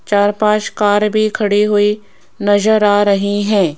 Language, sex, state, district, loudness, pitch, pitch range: Hindi, female, Rajasthan, Jaipur, -14 LUFS, 205 Hz, 205-210 Hz